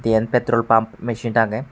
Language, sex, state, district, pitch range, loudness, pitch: Chakma, male, Tripura, West Tripura, 110-120 Hz, -19 LUFS, 115 Hz